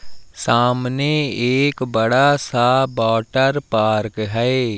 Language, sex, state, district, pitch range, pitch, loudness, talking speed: Hindi, male, Madhya Pradesh, Umaria, 115-135 Hz, 125 Hz, -18 LUFS, 90 wpm